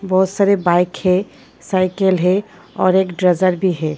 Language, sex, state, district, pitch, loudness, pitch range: Hindi, female, Delhi, New Delhi, 185 Hz, -16 LUFS, 180-190 Hz